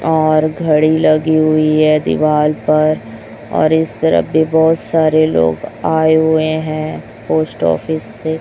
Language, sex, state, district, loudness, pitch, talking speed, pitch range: Hindi, male, Chhattisgarh, Raipur, -14 LUFS, 155 Hz, 145 wpm, 150-160 Hz